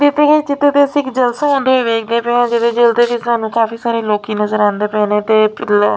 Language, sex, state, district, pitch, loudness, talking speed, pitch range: Punjabi, female, Punjab, Fazilka, 235 Hz, -14 LUFS, 230 wpm, 215-260 Hz